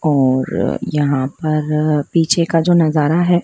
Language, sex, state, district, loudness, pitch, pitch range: Hindi, female, Madhya Pradesh, Dhar, -16 LUFS, 155 Hz, 145-165 Hz